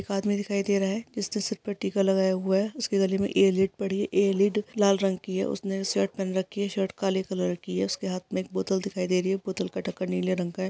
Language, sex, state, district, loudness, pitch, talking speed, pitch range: Hindi, female, Bihar, Kishanganj, -27 LUFS, 195 Hz, 285 wpm, 190-200 Hz